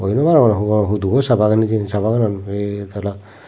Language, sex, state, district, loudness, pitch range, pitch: Chakma, male, Tripura, Unakoti, -17 LUFS, 100-110 Hz, 105 Hz